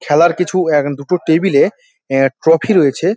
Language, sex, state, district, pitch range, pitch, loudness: Bengali, male, West Bengal, Dakshin Dinajpur, 140-185 Hz, 165 Hz, -14 LUFS